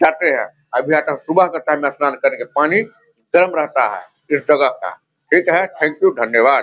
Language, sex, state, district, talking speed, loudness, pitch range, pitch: Hindi, male, Bihar, Vaishali, 200 wpm, -16 LUFS, 145-195 Hz, 155 Hz